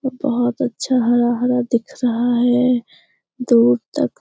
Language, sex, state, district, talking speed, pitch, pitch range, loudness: Hindi, female, Bihar, Jamui, 140 wpm, 245 Hz, 240-250 Hz, -18 LUFS